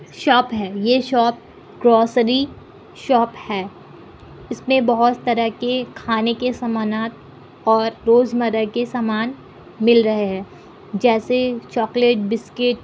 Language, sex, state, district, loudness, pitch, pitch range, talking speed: Hindi, female, Bihar, Kishanganj, -19 LUFS, 235 Hz, 225-245 Hz, 115 wpm